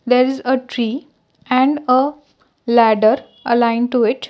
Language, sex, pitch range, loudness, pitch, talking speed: English, female, 235-260 Hz, -16 LUFS, 250 Hz, 140 wpm